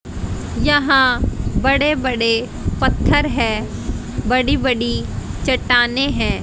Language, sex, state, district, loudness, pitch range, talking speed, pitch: Hindi, female, Haryana, Jhajjar, -18 LUFS, 245-280 Hz, 85 wpm, 260 Hz